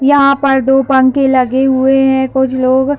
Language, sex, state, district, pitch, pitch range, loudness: Hindi, female, Jharkhand, Sahebganj, 265 Hz, 265-270 Hz, -11 LUFS